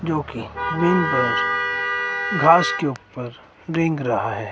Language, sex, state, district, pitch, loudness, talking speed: Hindi, male, Himachal Pradesh, Shimla, 115 Hz, -20 LUFS, 95 wpm